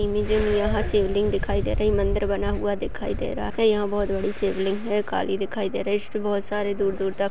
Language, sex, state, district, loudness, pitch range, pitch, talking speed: Hindi, female, Chhattisgarh, Bastar, -25 LUFS, 195-210 Hz, 205 Hz, 230 wpm